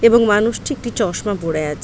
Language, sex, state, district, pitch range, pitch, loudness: Bengali, female, West Bengal, Paschim Medinipur, 170-235 Hz, 215 Hz, -18 LUFS